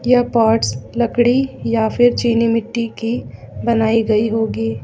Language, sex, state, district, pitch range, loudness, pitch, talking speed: Hindi, female, Jharkhand, Ranchi, 220-240 Hz, -17 LUFS, 230 Hz, 125 wpm